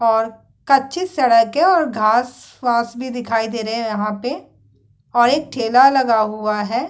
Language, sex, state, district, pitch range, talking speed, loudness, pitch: Hindi, female, Uttar Pradesh, Muzaffarnagar, 220-265 Hz, 165 wpm, -17 LUFS, 235 Hz